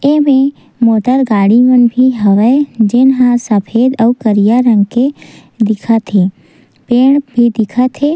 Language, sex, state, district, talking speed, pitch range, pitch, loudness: Chhattisgarhi, female, Chhattisgarh, Sukma, 130 wpm, 220-255 Hz, 240 Hz, -10 LUFS